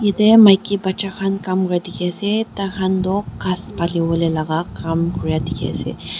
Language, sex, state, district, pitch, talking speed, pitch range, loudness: Nagamese, female, Nagaland, Dimapur, 185 Hz, 145 wpm, 170-195 Hz, -18 LUFS